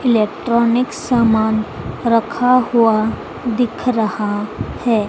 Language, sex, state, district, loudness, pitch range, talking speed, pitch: Hindi, female, Madhya Pradesh, Dhar, -17 LUFS, 220-240 Hz, 80 wpm, 230 Hz